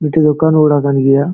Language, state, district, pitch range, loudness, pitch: Santali, Jharkhand, Sahebganj, 140-155 Hz, -12 LUFS, 150 Hz